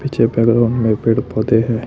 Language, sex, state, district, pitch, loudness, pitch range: Hindi, male, Chhattisgarh, Raipur, 115 Hz, -15 LUFS, 115-120 Hz